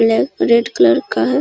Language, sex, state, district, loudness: Hindi, female, Bihar, Araria, -14 LUFS